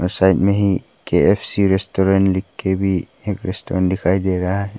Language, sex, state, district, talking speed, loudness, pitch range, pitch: Hindi, male, Arunachal Pradesh, Papum Pare, 175 wpm, -18 LUFS, 95-100 Hz, 95 Hz